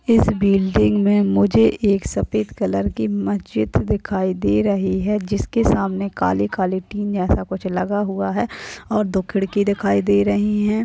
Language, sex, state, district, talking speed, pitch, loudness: Hindi, female, Uttar Pradesh, Etah, 160 wpm, 185 Hz, -19 LUFS